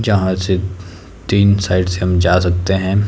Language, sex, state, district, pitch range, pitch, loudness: Hindi, male, Himachal Pradesh, Shimla, 90-100 Hz, 95 Hz, -15 LUFS